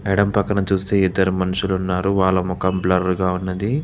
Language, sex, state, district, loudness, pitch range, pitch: Telugu, male, Telangana, Hyderabad, -19 LUFS, 90-100 Hz, 95 Hz